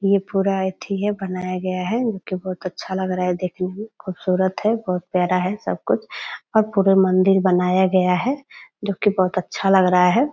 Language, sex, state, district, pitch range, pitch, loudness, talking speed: Hindi, female, Bihar, Purnia, 185-200 Hz, 190 Hz, -20 LUFS, 205 wpm